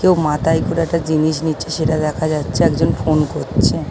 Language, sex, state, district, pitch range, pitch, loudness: Bengali, female, West Bengal, Malda, 155-160 Hz, 155 Hz, -17 LUFS